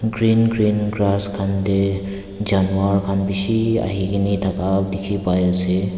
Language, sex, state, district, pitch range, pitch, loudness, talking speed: Nagamese, male, Nagaland, Dimapur, 95-105 Hz, 100 Hz, -18 LUFS, 140 wpm